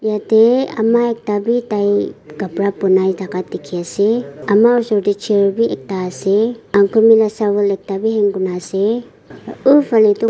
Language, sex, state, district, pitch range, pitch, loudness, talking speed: Nagamese, female, Nagaland, Kohima, 195-225 Hz, 205 Hz, -15 LUFS, 150 wpm